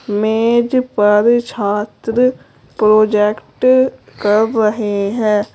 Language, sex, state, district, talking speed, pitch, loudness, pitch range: Hindi, female, Uttar Pradesh, Saharanpur, 75 wpm, 215 Hz, -14 LUFS, 210-240 Hz